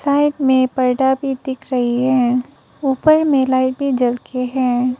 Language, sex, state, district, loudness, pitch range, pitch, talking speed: Hindi, female, Arunachal Pradesh, Papum Pare, -17 LUFS, 250-270 Hz, 260 Hz, 170 wpm